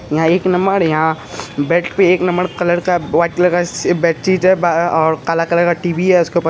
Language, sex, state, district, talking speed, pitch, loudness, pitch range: Hindi, male, Bihar, Araria, 185 wpm, 175 Hz, -15 LUFS, 165-180 Hz